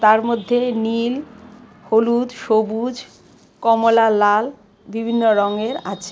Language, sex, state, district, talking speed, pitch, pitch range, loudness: Bengali, female, Tripura, West Tripura, 100 wpm, 225 Hz, 220-235 Hz, -18 LUFS